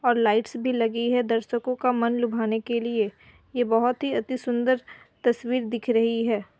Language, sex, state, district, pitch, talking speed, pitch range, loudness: Hindi, female, Uttar Pradesh, Muzaffarnagar, 240 Hz, 180 wpm, 230-245 Hz, -25 LUFS